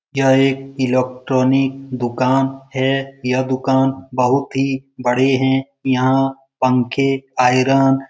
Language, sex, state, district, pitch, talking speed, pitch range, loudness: Hindi, male, Bihar, Lakhisarai, 135 Hz, 105 wpm, 130-135 Hz, -17 LUFS